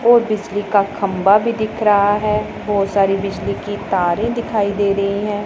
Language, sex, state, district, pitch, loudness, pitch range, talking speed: Hindi, female, Punjab, Pathankot, 205 Hz, -17 LUFS, 200-215 Hz, 185 wpm